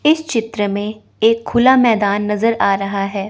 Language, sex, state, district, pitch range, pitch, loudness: Hindi, female, Chandigarh, Chandigarh, 200-230 Hz, 215 Hz, -16 LUFS